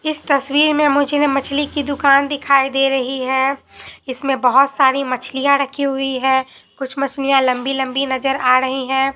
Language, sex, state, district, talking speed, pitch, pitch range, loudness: Hindi, female, Bihar, Katihar, 175 wpm, 270 Hz, 265-280 Hz, -16 LUFS